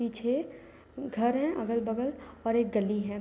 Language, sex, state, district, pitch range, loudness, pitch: Hindi, female, Bihar, Begusarai, 225-265 Hz, -31 LUFS, 235 Hz